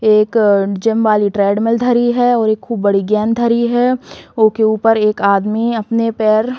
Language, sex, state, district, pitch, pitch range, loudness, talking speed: Bundeli, female, Uttar Pradesh, Hamirpur, 220 Hz, 210-235 Hz, -14 LUFS, 190 wpm